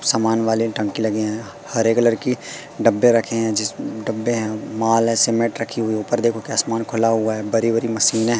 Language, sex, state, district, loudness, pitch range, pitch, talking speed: Hindi, male, Madhya Pradesh, Katni, -19 LUFS, 110-115 Hz, 115 Hz, 215 wpm